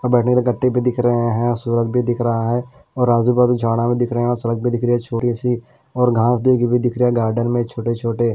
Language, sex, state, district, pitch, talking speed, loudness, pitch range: Hindi, male, Delhi, New Delhi, 120 Hz, 280 wpm, -18 LUFS, 115-125 Hz